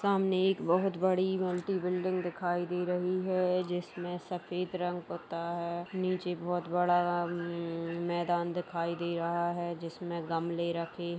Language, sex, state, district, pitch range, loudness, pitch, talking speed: Hindi, female, Uttar Pradesh, Jalaun, 170-180 Hz, -33 LUFS, 175 Hz, 145 wpm